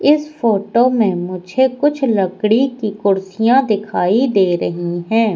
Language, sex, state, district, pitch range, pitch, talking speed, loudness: Hindi, female, Madhya Pradesh, Katni, 190-255 Hz, 215 Hz, 135 wpm, -16 LUFS